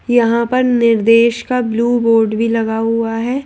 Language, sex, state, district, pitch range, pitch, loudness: Hindi, female, Madhya Pradesh, Bhopal, 230-240 Hz, 230 Hz, -14 LUFS